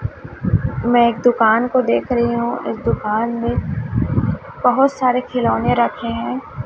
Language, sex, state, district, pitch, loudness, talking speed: Hindi, female, Chhattisgarh, Raipur, 235 Hz, -18 LUFS, 135 wpm